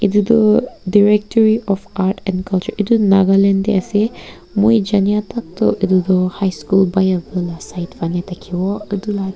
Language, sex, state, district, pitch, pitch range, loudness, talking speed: Nagamese, female, Nagaland, Kohima, 195 Hz, 185-210 Hz, -16 LUFS, 160 wpm